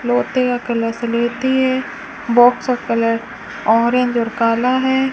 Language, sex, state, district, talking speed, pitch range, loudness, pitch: Hindi, female, Rajasthan, Bikaner, 140 wpm, 230-255 Hz, -17 LUFS, 240 Hz